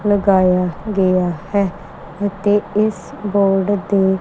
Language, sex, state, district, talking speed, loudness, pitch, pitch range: Punjabi, female, Punjab, Kapurthala, 100 wpm, -17 LUFS, 200 Hz, 185-205 Hz